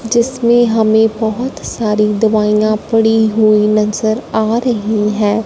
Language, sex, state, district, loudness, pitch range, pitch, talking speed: Hindi, female, Punjab, Fazilka, -13 LUFS, 215-225 Hz, 220 Hz, 120 wpm